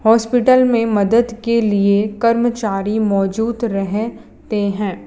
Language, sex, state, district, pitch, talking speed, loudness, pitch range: Hindi, female, Gujarat, Valsad, 220 Hz, 120 wpm, -16 LUFS, 205-235 Hz